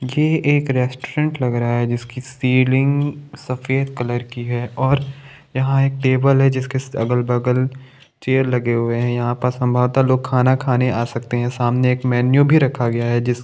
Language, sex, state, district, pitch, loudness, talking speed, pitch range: Hindi, male, Maharashtra, Chandrapur, 130 Hz, -18 LUFS, 185 wpm, 120-135 Hz